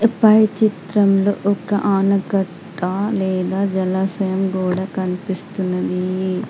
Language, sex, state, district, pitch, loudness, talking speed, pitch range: Telugu, female, Telangana, Adilabad, 195 Hz, -19 LUFS, 75 wpm, 185-200 Hz